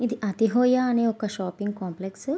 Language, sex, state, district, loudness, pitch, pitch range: Telugu, female, Andhra Pradesh, Visakhapatnam, -25 LUFS, 220 Hz, 195-245 Hz